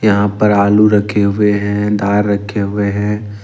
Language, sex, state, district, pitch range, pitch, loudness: Hindi, male, Jharkhand, Ranchi, 100-105 Hz, 105 Hz, -14 LUFS